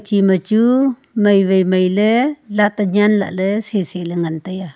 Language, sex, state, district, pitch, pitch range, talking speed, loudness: Wancho, female, Arunachal Pradesh, Longding, 200 Hz, 185-215 Hz, 190 wpm, -16 LUFS